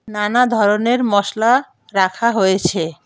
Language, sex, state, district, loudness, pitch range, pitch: Bengali, female, West Bengal, Alipurduar, -16 LUFS, 190-235 Hz, 210 Hz